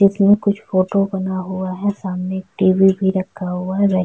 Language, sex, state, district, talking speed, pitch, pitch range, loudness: Hindi, female, Uttar Pradesh, Etah, 175 wpm, 190 Hz, 185-200 Hz, -18 LUFS